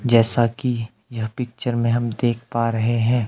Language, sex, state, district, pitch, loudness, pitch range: Hindi, male, Himachal Pradesh, Shimla, 120 Hz, -22 LUFS, 115-120 Hz